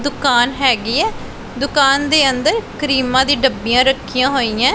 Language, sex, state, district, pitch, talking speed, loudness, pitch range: Punjabi, female, Punjab, Pathankot, 265 Hz, 140 wpm, -15 LUFS, 255-280 Hz